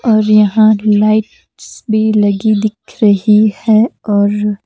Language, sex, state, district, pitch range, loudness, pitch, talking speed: Hindi, female, Himachal Pradesh, Shimla, 210-220 Hz, -11 LUFS, 215 Hz, 115 wpm